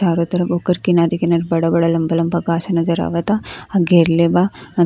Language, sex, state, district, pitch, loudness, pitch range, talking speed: Bhojpuri, female, Uttar Pradesh, Ghazipur, 170 Hz, -17 LUFS, 170-175 Hz, 185 wpm